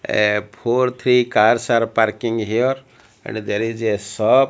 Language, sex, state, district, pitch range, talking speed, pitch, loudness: English, male, Odisha, Malkangiri, 110-125 Hz, 160 wpm, 115 Hz, -19 LUFS